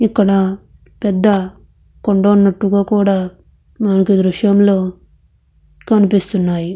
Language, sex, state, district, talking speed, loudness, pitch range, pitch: Telugu, female, Andhra Pradesh, Visakhapatnam, 55 wpm, -14 LUFS, 190-205 Hz, 200 Hz